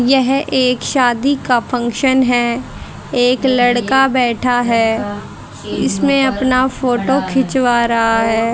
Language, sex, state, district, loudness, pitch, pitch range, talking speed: Hindi, female, Haryana, Charkhi Dadri, -15 LUFS, 250 Hz, 235-265 Hz, 110 wpm